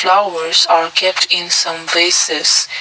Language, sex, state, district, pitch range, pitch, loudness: English, male, Assam, Kamrup Metropolitan, 165-185 Hz, 170 Hz, -12 LUFS